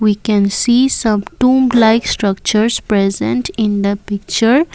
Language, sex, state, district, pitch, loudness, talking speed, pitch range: English, female, Assam, Kamrup Metropolitan, 215 Hz, -14 LUFS, 140 wpm, 200-240 Hz